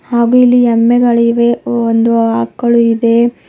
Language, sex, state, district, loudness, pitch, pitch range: Kannada, female, Karnataka, Bidar, -11 LUFS, 235 Hz, 230-240 Hz